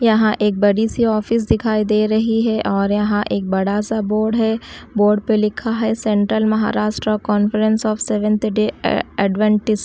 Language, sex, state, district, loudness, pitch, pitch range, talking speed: Hindi, female, Maharashtra, Washim, -18 LUFS, 215 Hz, 210-220 Hz, 170 wpm